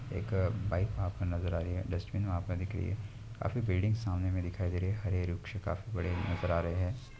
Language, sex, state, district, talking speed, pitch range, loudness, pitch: Hindi, male, Maharashtra, Nagpur, 250 wpm, 90-105 Hz, -35 LUFS, 95 Hz